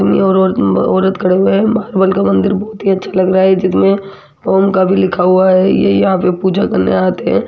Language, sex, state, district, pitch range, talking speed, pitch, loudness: Hindi, female, Rajasthan, Jaipur, 185-195 Hz, 185 wpm, 190 Hz, -12 LUFS